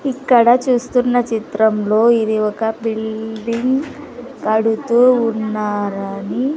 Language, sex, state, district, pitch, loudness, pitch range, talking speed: Telugu, female, Andhra Pradesh, Sri Satya Sai, 230 Hz, -16 LUFS, 220-250 Hz, 75 wpm